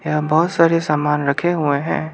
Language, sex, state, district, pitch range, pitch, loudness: Hindi, male, Arunachal Pradesh, Lower Dibang Valley, 150-165 Hz, 155 Hz, -17 LUFS